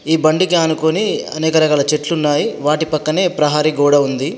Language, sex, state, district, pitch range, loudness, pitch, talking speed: Telugu, male, Telangana, Adilabad, 150-160 Hz, -15 LUFS, 155 Hz, 165 wpm